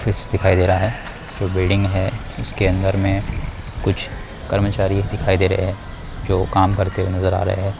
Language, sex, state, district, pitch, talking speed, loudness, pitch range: Hindi, male, Bihar, Muzaffarpur, 95 Hz, 210 wpm, -20 LUFS, 95-100 Hz